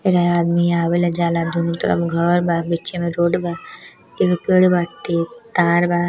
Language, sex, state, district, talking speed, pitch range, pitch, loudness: Bhojpuri, female, Uttar Pradesh, Deoria, 165 wpm, 170-175 Hz, 175 Hz, -18 LUFS